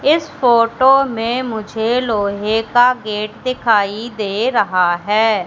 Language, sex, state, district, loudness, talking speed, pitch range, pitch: Hindi, female, Madhya Pradesh, Katni, -16 LUFS, 120 wpm, 210-245 Hz, 225 Hz